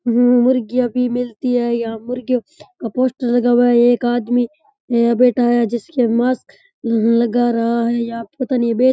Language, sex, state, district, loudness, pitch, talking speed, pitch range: Rajasthani, male, Rajasthan, Churu, -17 LUFS, 245 Hz, 160 wpm, 235-250 Hz